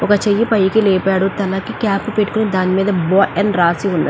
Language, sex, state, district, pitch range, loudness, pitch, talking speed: Telugu, female, Andhra Pradesh, Chittoor, 190-205 Hz, -15 LUFS, 195 Hz, 190 wpm